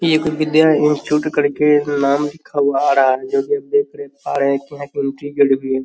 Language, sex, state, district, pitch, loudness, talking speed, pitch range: Hindi, male, Bihar, Darbhanga, 145 Hz, -17 LUFS, 185 wpm, 140-155 Hz